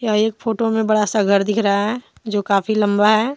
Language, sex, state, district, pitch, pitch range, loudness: Hindi, female, Jharkhand, Deoghar, 215 Hz, 205-220 Hz, -18 LUFS